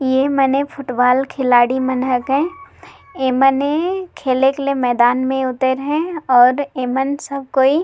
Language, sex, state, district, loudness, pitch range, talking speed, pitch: Sadri, female, Chhattisgarh, Jashpur, -17 LUFS, 255-285 Hz, 145 wpm, 270 Hz